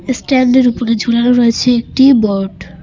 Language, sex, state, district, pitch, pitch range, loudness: Bengali, female, West Bengal, Cooch Behar, 240 Hz, 230-255 Hz, -12 LUFS